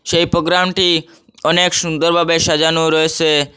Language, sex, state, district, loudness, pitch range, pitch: Bengali, male, Assam, Hailakandi, -14 LUFS, 160-170 Hz, 165 Hz